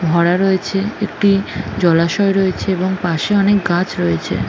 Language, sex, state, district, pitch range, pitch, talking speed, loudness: Bengali, female, West Bengal, Jhargram, 170-200 Hz, 190 Hz, 145 wpm, -16 LUFS